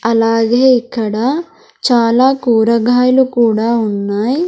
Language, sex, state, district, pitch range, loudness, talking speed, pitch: Telugu, female, Andhra Pradesh, Sri Satya Sai, 225-255 Hz, -13 LUFS, 80 wpm, 235 Hz